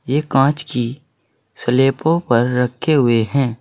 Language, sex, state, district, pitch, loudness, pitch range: Hindi, male, Uttar Pradesh, Saharanpur, 135 Hz, -17 LUFS, 125-145 Hz